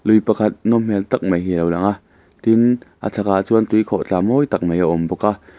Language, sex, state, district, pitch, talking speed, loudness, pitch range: Mizo, male, Mizoram, Aizawl, 105 Hz, 270 wpm, -18 LUFS, 95-110 Hz